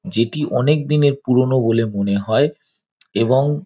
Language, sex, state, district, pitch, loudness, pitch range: Bengali, male, West Bengal, Dakshin Dinajpur, 130 Hz, -18 LUFS, 115-150 Hz